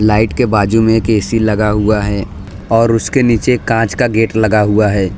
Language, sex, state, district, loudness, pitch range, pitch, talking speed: Hindi, male, Gujarat, Valsad, -13 LUFS, 105-115 Hz, 110 Hz, 210 wpm